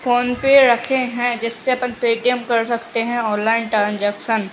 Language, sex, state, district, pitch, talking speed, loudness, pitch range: Hindi, female, Uttarakhand, Tehri Garhwal, 235 Hz, 160 wpm, -18 LUFS, 225-245 Hz